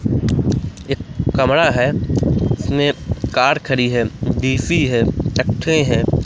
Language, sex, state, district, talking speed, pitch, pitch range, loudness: Hindi, male, Madhya Pradesh, Umaria, 95 wpm, 130 Hz, 115-145 Hz, -17 LUFS